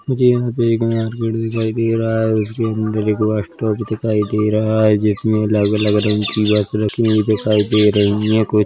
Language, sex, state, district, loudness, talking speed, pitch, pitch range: Hindi, male, Chhattisgarh, Korba, -17 LUFS, 230 wpm, 110 Hz, 105-115 Hz